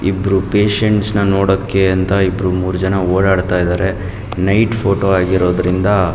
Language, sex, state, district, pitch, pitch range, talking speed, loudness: Kannada, male, Karnataka, Mysore, 95 Hz, 95-100 Hz, 125 wpm, -15 LUFS